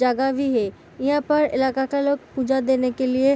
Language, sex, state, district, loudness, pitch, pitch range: Hindi, female, Bihar, East Champaran, -22 LUFS, 265 Hz, 260-280 Hz